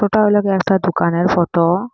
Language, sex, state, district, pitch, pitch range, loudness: Bengali, female, Assam, Hailakandi, 190 Hz, 175-205 Hz, -16 LUFS